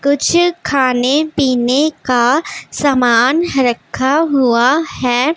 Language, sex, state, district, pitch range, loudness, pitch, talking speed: Hindi, female, Punjab, Pathankot, 250-310 Hz, -14 LUFS, 275 Hz, 80 wpm